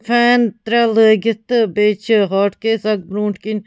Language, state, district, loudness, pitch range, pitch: Kashmiri, Punjab, Kapurthala, -15 LUFS, 210-230 Hz, 220 Hz